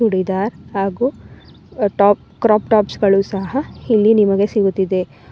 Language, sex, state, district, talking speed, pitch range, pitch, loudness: Kannada, female, Karnataka, Bangalore, 110 wpm, 195-220 Hz, 200 Hz, -17 LUFS